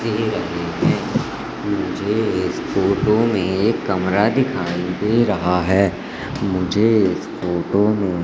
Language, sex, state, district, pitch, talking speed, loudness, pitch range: Hindi, male, Madhya Pradesh, Katni, 100 Hz, 125 wpm, -19 LUFS, 90-110 Hz